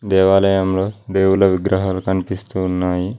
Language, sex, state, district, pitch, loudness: Telugu, male, Telangana, Mahabubabad, 95 Hz, -17 LUFS